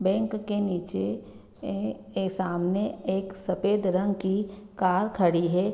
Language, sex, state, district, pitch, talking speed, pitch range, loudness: Hindi, female, Bihar, Gopalganj, 190 Hz, 145 wpm, 175-200 Hz, -28 LUFS